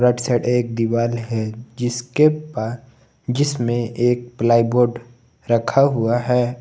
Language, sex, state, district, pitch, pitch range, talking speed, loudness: Hindi, male, Jharkhand, Garhwa, 120 Hz, 115-125 Hz, 125 wpm, -19 LUFS